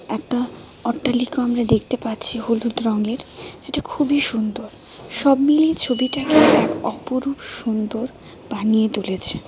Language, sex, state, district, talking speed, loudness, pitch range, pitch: Bengali, female, Tripura, West Tripura, 120 wpm, -20 LUFS, 225-265 Hz, 240 Hz